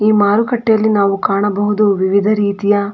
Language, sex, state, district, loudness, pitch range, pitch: Kannada, female, Karnataka, Dakshina Kannada, -14 LUFS, 200-215 Hz, 205 Hz